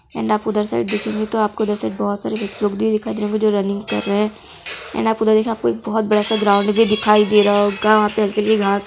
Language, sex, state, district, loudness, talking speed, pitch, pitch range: Hindi, female, Uttar Pradesh, Budaun, -18 LUFS, 290 wpm, 210 Hz, 205-215 Hz